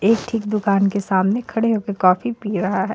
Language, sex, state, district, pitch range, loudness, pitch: Hindi, female, Jharkhand, Ranchi, 195-225 Hz, -19 LUFS, 205 Hz